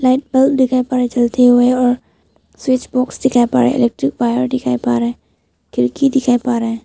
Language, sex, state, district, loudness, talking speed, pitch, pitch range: Hindi, female, Arunachal Pradesh, Papum Pare, -15 LUFS, 210 wpm, 245 Hz, 185-255 Hz